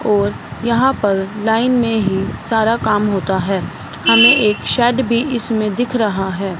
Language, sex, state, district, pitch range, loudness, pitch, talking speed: Hindi, female, Punjab, Fazilka, 200-235 Hz, -15 LUFS, 220 Hz, 165 wpm